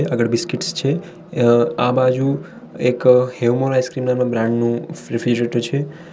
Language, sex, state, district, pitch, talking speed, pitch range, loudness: Gujarati, male, Gujarat, Valsad, 125 Hz, 125 wpm, 120-140 Hz, -18 LUFS